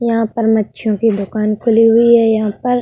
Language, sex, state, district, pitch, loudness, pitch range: Hindi, female, Uttar Pradesh, Budaun, 225 Hz, -14 LUFS, 215-230 Hz